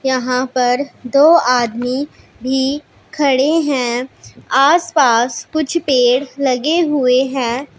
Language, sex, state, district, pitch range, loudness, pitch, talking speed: Hindi, female, Punjab, Pathankot, 250-285 Hz, -15 LUFS, 265 Hz, 110 wpm